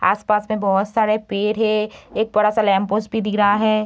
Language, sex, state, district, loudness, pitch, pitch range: Hindi, female, Bihar, Begusarai, -19 LUFS, 215 Hz, 205-215 Hz